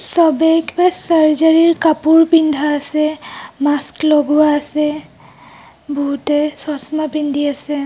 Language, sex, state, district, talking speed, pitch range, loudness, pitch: Assamese, female, Assam, Kamrup Metropolitan, 105 wpm, 295-320 Hz, -14 LUFS, 305 Hz